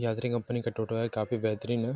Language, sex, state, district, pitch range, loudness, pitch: Hindi, male, Jharkhand, Jamtara, 110-120 Hz, -31 LUFS, 115 Hz